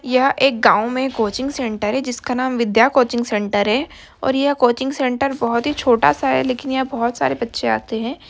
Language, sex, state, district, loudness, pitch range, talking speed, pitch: Hindi, female, Bihar, Jahanabad, -18 LUFS, 230-265 Hz, 210 wpm, 245 Hz